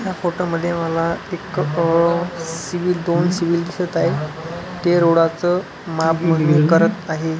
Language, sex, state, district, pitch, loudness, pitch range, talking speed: Marathi, male, Maharashtra, Pune, 170 Hz, -19 LUFS, 165-175 Hz, 130 wpm